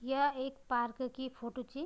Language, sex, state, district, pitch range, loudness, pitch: Garhwali, female, Uttarakhand, Tehri Garhwal, 245-270 Hz, -37 LUFS, 260 Hz